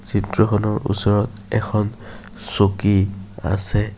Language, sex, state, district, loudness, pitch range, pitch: Assamese, male, Assam, Kamrup Metropolitan, -17 LUFS, 100-105 Hz, 105 Hz